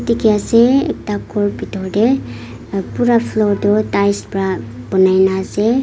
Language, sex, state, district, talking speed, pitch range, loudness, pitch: Nagamese, female, Nagaland, Kohima, 145 wpm, 190-230 Hz, -16 LUFS, 205 Hz